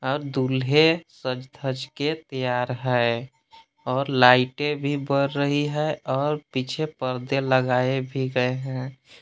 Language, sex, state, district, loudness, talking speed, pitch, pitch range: Hindi, male, Jharkhand, Palamu, -24 LUFS, 130 wpm, 135 Hz, 130-145 Hz